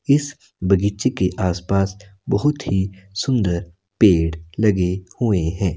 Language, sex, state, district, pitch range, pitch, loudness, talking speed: Hindi, male, Himachal Pradesh, Shimla, 90-110 Hz, 95 Hz, -20 LUFS, 115 wpm